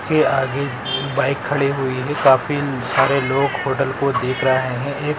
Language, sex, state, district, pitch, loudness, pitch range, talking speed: Hindi, male, Bihar, Saran, 140 Hz, -19 LUFS, 130-140 Hz, 160 wpm